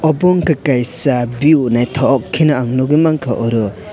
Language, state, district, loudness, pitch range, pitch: Kokborok, Tripura, West Tripura, -14 LUFS, 120-155 Hz, 135 Hz